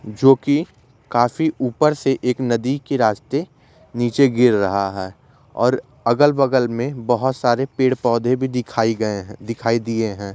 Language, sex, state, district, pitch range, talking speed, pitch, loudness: Maithili, male, Bihar, Begusarai, 115-135 Hz, 155 wpm, 125 Hz, -19 LUFS